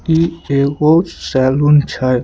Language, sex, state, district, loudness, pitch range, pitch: Maithili, male, Bihar, Samastipur, -14 LUFS, 130-160 Hz, 145 Hz